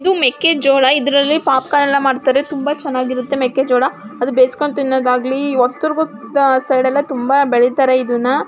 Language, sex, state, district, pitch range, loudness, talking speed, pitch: Kannada, female, Karnataka, Mysore, 255-285 Hz, -15 LUFS, 140 wpm, 270 Hz